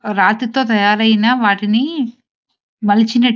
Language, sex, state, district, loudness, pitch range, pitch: Telugu, female, Andhra Pradesh, Srikakulam, -14 LUFS, 210-245 Hz, 225 Hz